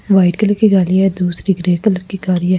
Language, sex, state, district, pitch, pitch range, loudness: Hindi, female, Delhi, New Delhi, 185 Hz, 180-195 Hz, -14 LUFS